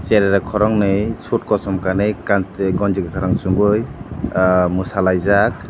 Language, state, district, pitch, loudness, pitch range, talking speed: Kokborok, Tripura, Dhalai, 100 Hz, -17 LUFS, 95-105 Hz, 115 wpm